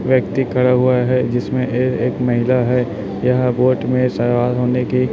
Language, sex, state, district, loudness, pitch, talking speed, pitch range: Hindi, male, Chhattisgarh, Raipur, -17 LUFS, 125 Hz, 175 wpm, 120-125 Hz